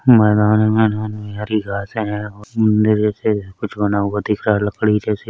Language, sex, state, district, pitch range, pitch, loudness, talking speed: Hindi, male, Uttar Pradesh, Varanasi, 105-110 Hz, 105 Hz, -18 LUFS, 215 wpm